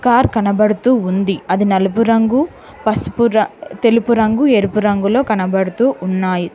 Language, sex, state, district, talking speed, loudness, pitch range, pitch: Telugu, female, Telangana, Hyderabad, 120 wpm, -15 LUFS, 190-235 Hz, 215 Hz